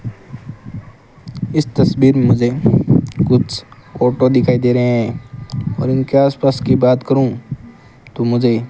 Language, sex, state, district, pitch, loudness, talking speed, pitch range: Hindi, male, Rajasthan, Bikaner, 125 Hz, -15 LUFS, 140 wpm, 120-135 Hz